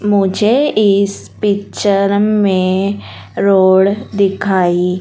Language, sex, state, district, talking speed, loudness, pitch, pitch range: Hindi, female, Madhya Pradesh, Dhar, 70 wpm, -13 LUFS, 200 Hz, 190-205 Hz